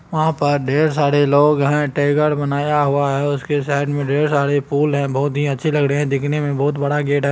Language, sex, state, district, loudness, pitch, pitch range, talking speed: Magahi, male, Bihar, Gaya, -17 LUFS, 145 Hz, 140-150 Hz, 270 wpm